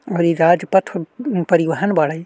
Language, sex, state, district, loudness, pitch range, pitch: Bhojpuri, male, Uttar Pradesh, Ghazipur, -17 LUFS, 170-190 Hz, 175 Hz